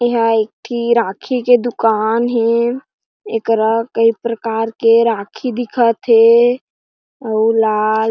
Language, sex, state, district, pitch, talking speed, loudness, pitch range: Chhattisgarhi, female, Chhattisgarh, Jashpur, 230 Hz, 140 wpm, -15 LUFS, 225-240 Hz